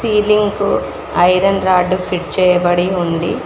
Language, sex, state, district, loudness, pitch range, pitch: Telugu, female, Telangana, Mahabubabad, -14 LUFS, 180-200 Hz, 185 Hz